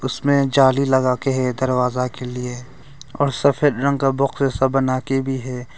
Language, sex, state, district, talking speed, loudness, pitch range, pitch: Hindi, male, Arunachal Pradesh, Longding, 185 wpm, -19 LUFS, 125-140 Hz, 135 Hz